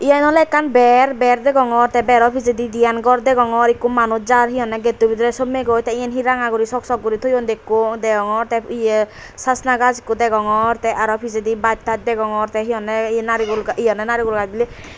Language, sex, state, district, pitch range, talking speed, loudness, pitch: Chakma, female, Tripura, Dhalai, 225-245 Hz, 210 wpm, -17 LUFS, 235 Hz